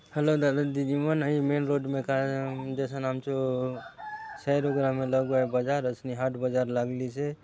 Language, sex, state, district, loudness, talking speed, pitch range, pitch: Halbi, male, Chhattisgarh, Bastar, -28 LUFS, 155 wpm, 130-145 Hz, 135 Hz